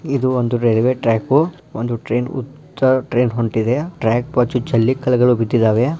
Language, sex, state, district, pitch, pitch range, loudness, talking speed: Kannada, male, Karnataka, Dharwad, 125 Hz, 115-130 Hz, -17 LUFS, 120 wpm